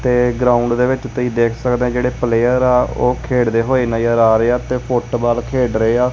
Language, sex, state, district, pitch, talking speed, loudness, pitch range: Punjabi, male, Punjab, Kapurthala, 125 Hz, 235 wpm, -16 LUFS, 120-125 Hz